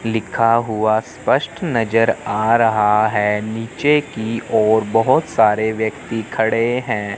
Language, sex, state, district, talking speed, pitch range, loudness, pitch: Hindi, male, Chandigarh, Chandigarh, 125 wpm, 110-115 Hz, -17 LUFS, 110 Hz